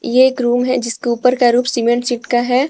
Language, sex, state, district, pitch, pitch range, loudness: Hindi, female, Jharkhand, Garhwa, 245 Hz, 240-255 Hz, -15 LUFS